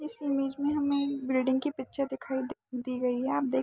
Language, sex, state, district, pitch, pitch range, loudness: Hindi, female, Jharkhand, Sahebganj, 270 Hz, 260-285 Hz, -31 LUFS